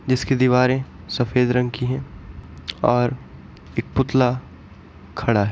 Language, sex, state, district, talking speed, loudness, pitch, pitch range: Hindi, male, Uttar Pradesh, Etah, 120 wpm, -21 LUFS, 125 Hz, 95-130 Hz